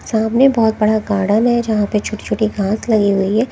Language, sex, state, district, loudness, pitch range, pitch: Hindi, female, Haryana, Jhajjar, -15 LUFS, 210-225 Hz, 215 Hz